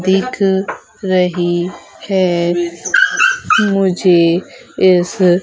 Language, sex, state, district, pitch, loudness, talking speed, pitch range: Hindi, female, Madhya Pradesh, Umaria, 185 Hz, -14 LUFS, 55 wpm, 175-195 Hz